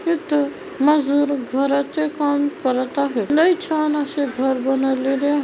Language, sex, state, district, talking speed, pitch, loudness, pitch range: Marathi, female, Maharashtra, Chandrapur, 120 wpm, 285 Hz, -20 LUFS, 270-305 Hz